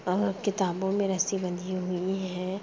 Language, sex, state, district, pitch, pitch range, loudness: Hindi, female, Chhattisgarh, Rajnandgaon, 190 Hz, 185-195 Hz, -29 LUFS